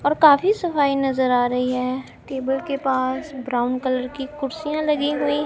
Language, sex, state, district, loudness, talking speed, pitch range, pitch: Hindi, female, Punjab, Kapurthala, -21 LUFS, 175 wpm, 255-290 Hz, 275 Hz